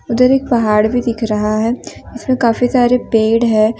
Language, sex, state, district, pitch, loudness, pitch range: Hindi, female, Jharkhand, Deoghar, 235 Hz, -14 LUFS, 220-245 Hz